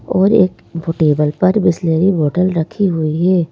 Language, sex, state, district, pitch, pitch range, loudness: Hindi, female, Madhya Pradesh, Bhopal, 175 Hz, 160-185 Hz, -15 LUFS